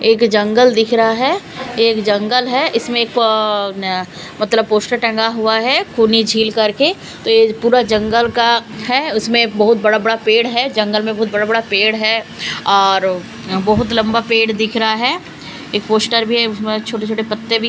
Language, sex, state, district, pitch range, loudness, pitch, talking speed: Hindi, female, Delhi, New Delhi, 215-230 Hz, -14 LUFS, 225 Hz, 175 wpm